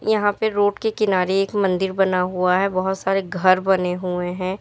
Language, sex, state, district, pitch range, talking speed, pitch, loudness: Hindi, female, Uttar Pradesh, Lalitpur, 185-205 Hz, 210 wpm, 190 Hz, -20 LUFS